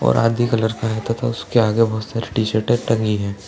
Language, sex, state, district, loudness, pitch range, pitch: Hindi, male, Uttar Pradesh, Ghazipur, -19 LUFS, 110-115 Hz, 115 Hz